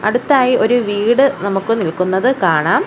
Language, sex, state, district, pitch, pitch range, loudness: Malayalam, female, Kerala, Kollam, 230 Hz, 200-255 Hz, -14 LUFS